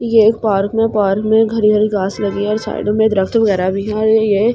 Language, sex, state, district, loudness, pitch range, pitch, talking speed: Hindi, female, Delhi, New Delhi, -15 LUFS, 200-220 Hz, 215 Hz, 235 wpm